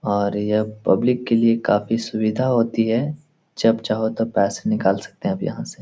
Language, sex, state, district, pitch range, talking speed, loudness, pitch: Hindi, male, Bihar, Jahanabad, 110-125 Hz, 195 wpm, -21 LUFS, 115 Hz